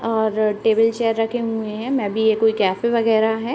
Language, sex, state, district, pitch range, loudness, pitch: Hindi, female, Uttar Pradesh, Deoria, 220-230 Hz, -19 LUFS, 225 Hz